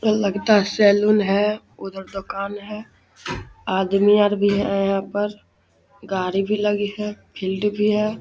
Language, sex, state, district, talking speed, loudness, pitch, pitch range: Hindi, male, Bihar, Samastipur, 155 wpm, -21 LUFS, 205 Hz, 195-210 Hz